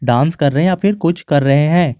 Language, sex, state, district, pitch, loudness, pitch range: Hindi, male, Jharkhand, Garhwa, 155 Hz, -14 LUFS, 140-175 Hz